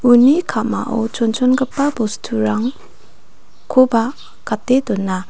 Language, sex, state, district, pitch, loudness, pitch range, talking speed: Garo, female, Meghalaya, North Garo Hills, 240 Hz, -17 LUFS, 220-255 Hz, 80 wpm